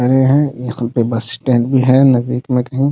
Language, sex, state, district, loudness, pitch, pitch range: Hindi, male, Bihar, Muzaffarpur, -14 LUFS, 125 Hz, 120-130 Hz